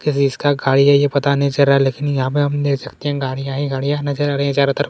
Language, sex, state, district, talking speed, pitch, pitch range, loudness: Hindi, male, Chhattisgarh, Kabirdham, 320 wpm, 140 Hz, 140-145 Hz, -17 LUFS